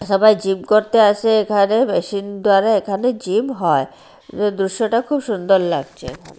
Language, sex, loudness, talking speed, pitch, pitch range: Bengali, female, -17 LUFS, 130 wpm, 210 Hz, 195-225 Hz